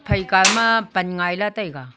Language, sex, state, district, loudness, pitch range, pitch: Wancho, female, Arunachal Pradesh, Longding, -18 LUFS, 175-215 Hz, 190 Hz